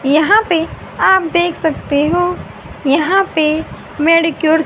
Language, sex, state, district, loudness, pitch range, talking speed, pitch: Hindi, female, Haryana, Rohtak, -14 LUFS, 310-350 Hz, 130 wpm, 325 Hz